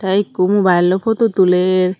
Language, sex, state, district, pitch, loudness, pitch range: Chakma, female, Tripura, Dhalai, 185 Hz, -14 LUFS, 185-200 Hz